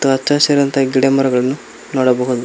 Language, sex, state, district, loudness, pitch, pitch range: Kannada, male, Karnataka, Koppal, -15 LUFS, 135 Hz, 130-140 Hz